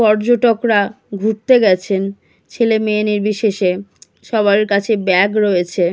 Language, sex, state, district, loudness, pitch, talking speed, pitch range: Bengali, female, West Bengal, Kolkata, -15 LUFS, 210 Hz, 100 wpm, 195-220 Hz